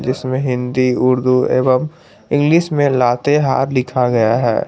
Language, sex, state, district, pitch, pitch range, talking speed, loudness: Hindi, male, Jharkhand, Garhwa, 130 Hz, 125-145 Hz, 130 wpm, -15 LUFS